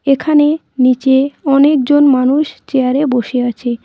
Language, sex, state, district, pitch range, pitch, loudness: Bengali, female, West Bengal, Cooch Behar, 255-290 Hz, 275 Hz, -12 LUFS